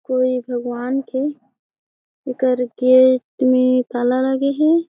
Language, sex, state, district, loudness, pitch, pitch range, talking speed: Chhattisgarhi, female, Chhattisgarh, Jashpur, -18 LUFS, 255 Hz, 250-265 Hz, 110 wpm